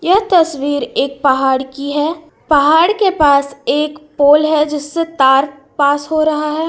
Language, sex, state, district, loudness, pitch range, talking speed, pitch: Hindi, female, Jharkhand, Palamu, -14 LUFS, 280-315 Hz, 160 wpm, 295 Hz